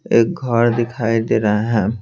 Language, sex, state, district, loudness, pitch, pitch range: Hindi, male, Bihar, Patna, -17 LUFS, 115 Hz, 110-120 Hz